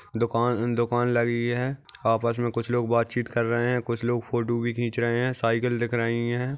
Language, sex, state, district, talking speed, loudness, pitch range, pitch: Hindi, male, Maharashtra, Aurangabad, 200 wpm, -26 LUFS, 115-120 Hz, 120 Hz